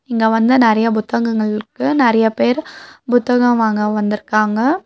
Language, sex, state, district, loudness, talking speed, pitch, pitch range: Tamil, female, Tamil Nadu, Nilgiris, -15 LUFS, 110 wpm, 230 Hz, 215-245 Hz